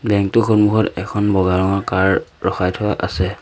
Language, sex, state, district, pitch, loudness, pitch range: Assamese, male, Assam, Sonitpur, 100 Hz, -17 LUFS, 95-105 Hz